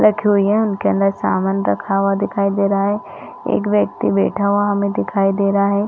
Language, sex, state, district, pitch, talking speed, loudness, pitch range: Hindi, female, Chhattisgarh, Rajnandgaon, 200 Hz, 215 wpm, -17 LUFS, 195-205 Hz